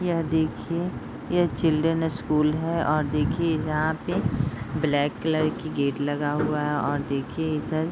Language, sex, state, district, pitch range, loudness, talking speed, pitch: Hindi, female, Bihar, Bhagalpur, 145-160 Hz, -25 LUFS, 160 wpm, 155 Hz